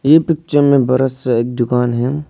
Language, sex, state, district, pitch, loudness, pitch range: Hindi, male, Arunachal Pradesh, Lower Dibang Valley, 130 Hz, -15 LUFS, 125-145 Hz